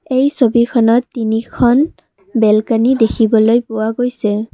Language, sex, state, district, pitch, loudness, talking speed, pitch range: Assamese, female, Assam, Kamrup Metropolitan, 230 Hz, -14 LUFS, 90 wpm, 220-245 Hz